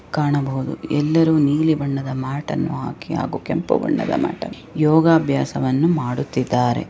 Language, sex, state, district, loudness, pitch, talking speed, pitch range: Kannada, female, Karnataka, Raichur, -20 LUFS, 145 Hz, 130 wpm, 130-155 Hz